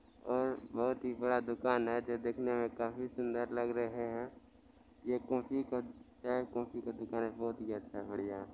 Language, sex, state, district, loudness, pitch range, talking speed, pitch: Maithili, male, Bihar, Supaul, -38 LUFS, 115-125 Hz, 190 wpm, 120 Hz